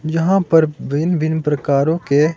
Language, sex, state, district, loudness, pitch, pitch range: Hindi, male, Himachal Pradesh, Shimla, -17 LUFS, 160 Hz, 150-165 Hz